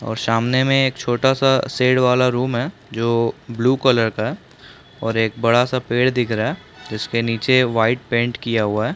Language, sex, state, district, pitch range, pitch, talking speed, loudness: Hindi, male, Chhattisgarh, Bastar, 115-130 Hz, 120 Hz, 195 wpm, -19 LUFS